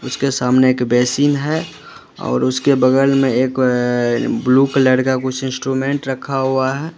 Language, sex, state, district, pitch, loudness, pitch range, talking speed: Hindi, male, Uttar Pradesh, Lalitpur, 130 Hz, -16 LUFS, 130-135 Hz, 145 wpm